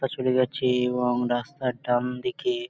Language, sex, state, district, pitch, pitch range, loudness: Bengali, male, West Bengal, Malda, 125 Hz, 125-135 Hz, -26 LUFS